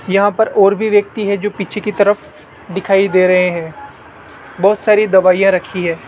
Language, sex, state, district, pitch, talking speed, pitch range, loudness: Hindi, male, Rajasthan, Jaipur, 195 Hz, 190 wpm, 180-205 Hz, -13 LUFS